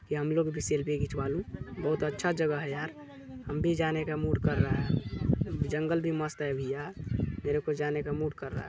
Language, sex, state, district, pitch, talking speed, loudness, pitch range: Hindi, male, Chhattisgarh, Balrampur, 150 Hz, 215 wpm, -32 LUFS, 140-155 Hz